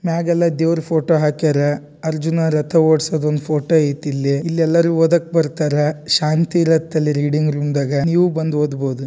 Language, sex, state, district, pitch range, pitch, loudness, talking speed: Kannada, male, Karnataka, Dharwad, 150-165 Hz, 155 Hz, -17 LUFS, 150 wpm